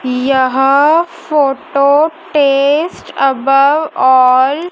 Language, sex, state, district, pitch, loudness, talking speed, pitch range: Hindi, female, Madhya Pradesh, Dhar, 275 Hz, -11 LUFS, 75 wpm, 265-310 Hz